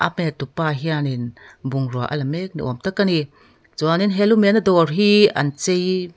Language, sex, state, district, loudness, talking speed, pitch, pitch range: Mizo, female, Mizoram, Aizawl, -19 LUFS, 185 wpm, 165 Hz, 140-190 Hz